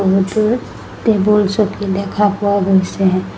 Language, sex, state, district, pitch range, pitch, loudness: Assamese, female, Assam, Sonitpur, 195-210 Hz, 200 Hz, -15 LUFS